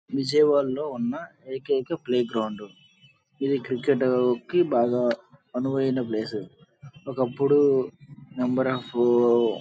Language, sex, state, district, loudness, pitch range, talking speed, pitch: Telugu, male, Andhra Pradesh, Krishna, -24 LUFS, 120-145 Hz, 105 wpm, 130 Hz